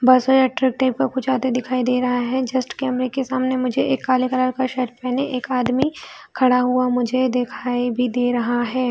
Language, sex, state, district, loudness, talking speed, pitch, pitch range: Hindi, female, Chhattisgarh, Bilaspur, -20 LUFS, 220 wpm, 255 Hz, 250-260 Hz